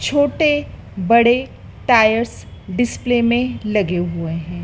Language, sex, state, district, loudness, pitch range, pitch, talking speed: Hindi, female, Madhya Pradesh, Dhar, -17 LUFS, 185-245 Hz, 235 Hz, 105 wpm